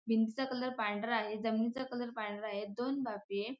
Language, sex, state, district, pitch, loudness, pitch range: Marathi, female, Maharashtra, Sindhudurg, 225 Hz, -37 LUFS, 215-245 Hz